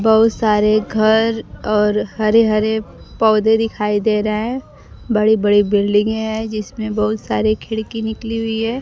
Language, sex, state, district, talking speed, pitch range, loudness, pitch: Hindi, female, Bihar, Kaimur, 150 wpm, 215-225 Hz, -17 LUFS, 220 Hz